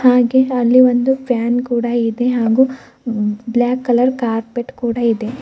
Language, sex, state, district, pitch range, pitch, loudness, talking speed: Kannada, female, Karnataka, Bidar, 235-255 Hz, 245 Hz, -16 LUFS, 130 wpm